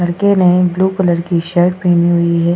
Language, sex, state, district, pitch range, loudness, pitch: Hindi, female, Goa, North and South Goa, 170-180 Hz, -13 LUFS, 175 Hz